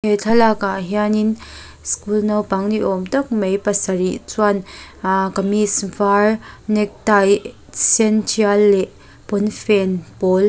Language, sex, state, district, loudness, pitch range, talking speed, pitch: Mizo, female, Mizoram, Aizawl, -17 LUFS, 195-215 Hz, 120 wpm, 205 Hz